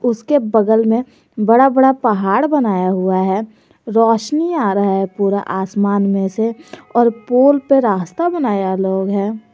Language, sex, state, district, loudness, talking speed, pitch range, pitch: Hindi, female, Jharkhand, Garhwa, -15 LUFS, 150 wpm, 195-250 Hz, 220 Hz